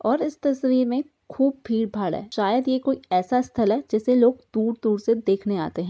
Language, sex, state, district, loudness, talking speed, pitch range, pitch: Hindi, female, Bihar, Jahanabad, -23 LUFS, 205 wpm, 210-260 Hz, 235 Hz